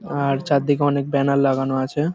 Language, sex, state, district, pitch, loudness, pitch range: Bengali, male, West Bengal, Paschim Medinipur, 140 Hz, -20 LUFS, 135-145 Hz